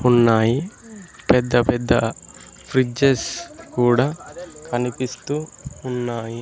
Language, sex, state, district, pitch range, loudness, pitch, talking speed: Telugu, male, Andhra Pradesh, Sri Satya Sai, 120-140 Hz, -20 LUFS, 125 Hz, 65 wpm